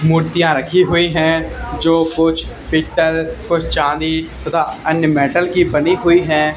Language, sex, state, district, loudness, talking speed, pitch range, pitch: Hindi, male, Haryana, Charkhi Dadri, -15 LUFS, 145 wpm, 160-170 Hz, 160 Hz